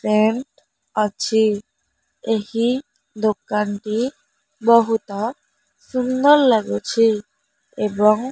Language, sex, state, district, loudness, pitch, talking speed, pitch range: Odia, female, Odisha, Khordha, -19 LUFS, 220 Hz, 65 wpm, 210-250 Hz